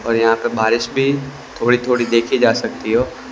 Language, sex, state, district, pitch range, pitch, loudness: Hindi, male, Gujarat, Valsad, 115-130 Hz, 120 Hz, -17 LUFS